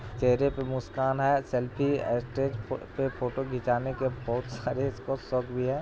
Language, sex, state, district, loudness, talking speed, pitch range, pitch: Hindi, male, Bihar, Supaul, -30 LUFS, 165 wpm, 125-135 Hz, 130 Hz